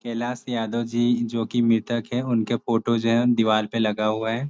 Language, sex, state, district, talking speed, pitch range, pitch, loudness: Hindi, male, Uttar Pradesh, Ghazipur, 200 wpm, 115-120 Hz, 115 Hz, -23 LUFS